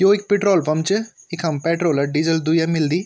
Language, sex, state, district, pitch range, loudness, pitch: Garhwali, male, Uttarakhand, Tehri Garhwal, 160-195 Hz, -19 LUFS, 165 Hz